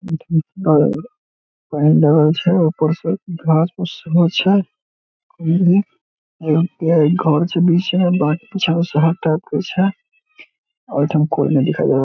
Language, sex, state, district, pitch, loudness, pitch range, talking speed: Maithili, male, Bihar, Samastipur, 165 Hz, -16 LUFS, 155-180 Hz, 110 wpm